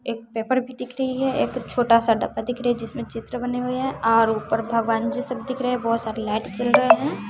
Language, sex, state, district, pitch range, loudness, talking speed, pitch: Hindi, female, Bihar, West Champaran, 225-250 Hz, -23 LUFS, 245 wpm, 240 Hz